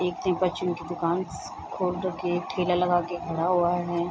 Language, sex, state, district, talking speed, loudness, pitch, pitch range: Hindi, female, Bihar, Sitamarhi, 235 wpm, -27 LUFS, 180 Hz, 175-180 Hz